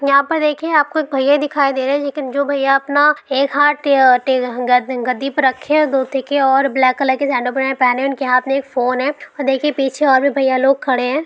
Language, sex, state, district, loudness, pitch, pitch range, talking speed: Hindi, female, Bihar, Lakhisarai, -15 LUFS, 275 Hz, 260-285 Hz, 190 wpm